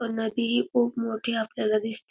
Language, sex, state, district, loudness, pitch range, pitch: Marathi, female, Maharashtra, Dhule, -27 LUFS, 220-235 Hz, 225 Hz